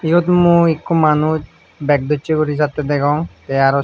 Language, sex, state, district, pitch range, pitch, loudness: Chakma, male, Tripura, Unakoti, 145-165 Hz, 150 Hz, -16 LUFS